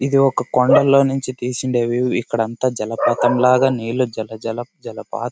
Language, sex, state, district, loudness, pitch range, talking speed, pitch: Telugu, male, Karnataka, Bellary, -18 LUFS, 115-130 Hz, 160 wpm, 125 Hz